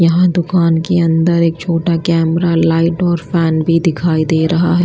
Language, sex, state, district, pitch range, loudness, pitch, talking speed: Hindi, female, Himachal Pradesh, Shimla, 165-175 Hz, -13 LUFS, 170 Hz, 185 wpm